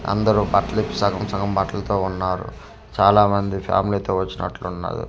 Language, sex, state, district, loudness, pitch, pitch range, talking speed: Telugu, male, Andhra Pradesh, Manyam, -21 LUFS, 100 Hz, 95-105 Hz, 165 wpm